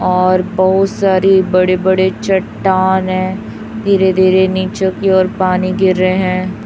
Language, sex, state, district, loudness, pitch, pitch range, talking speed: Hindi, female, Chhattisgarh, Raipur, -13 LUFS, 190 Hz, 185-190 Hz, 145 wpm